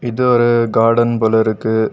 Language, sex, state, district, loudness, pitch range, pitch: Tamil, male, Tamil Nadu, Kanyakumari, -14 LUFS, 110-120 Hz, 115 Hz